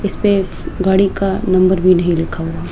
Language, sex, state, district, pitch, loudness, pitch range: Hindi, female, Rajasthan, Jaipur, 185 Hz, -15 LUFS, 175-195 Hz